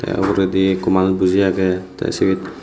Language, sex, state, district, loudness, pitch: Chakma, male, Tripura, Unakoti, -17 LUFS, 95 Hz